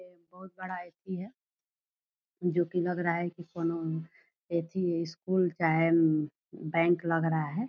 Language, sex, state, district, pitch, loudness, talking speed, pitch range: Hindi, female, Bihar, Purnia, 170 Hz, -31 LUFS, 155 wpm, 165-180 Hz